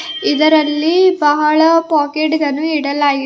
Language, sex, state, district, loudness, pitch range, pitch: Kannada, female, Karnataka, Bidar, -13 LUFS, 295-320 Hz, 310 Hz